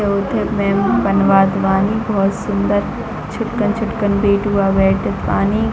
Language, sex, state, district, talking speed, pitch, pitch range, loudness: Hindi, female, Chhattisgarh, Bilaspur, 115 wpm, 200 Hz, 195-210 Hz, -16 LUFS